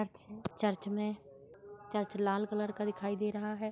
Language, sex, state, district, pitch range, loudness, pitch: Hindi, female, Bihar, East Champaran, 200-210 Hz, -36 LUFS, 210 Hz